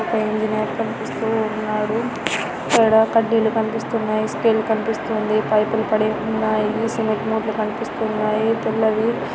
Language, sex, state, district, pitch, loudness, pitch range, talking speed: Telugu, female, Andhra Pradesh, Anantapur, 220 Hz, -20 LUFS, 215-225 Hz, 110 wpm